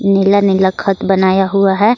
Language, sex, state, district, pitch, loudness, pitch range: Hindi, female, Jharkhand, Garhwa, 195 Hz, -12 LUFS, 190-200 Hz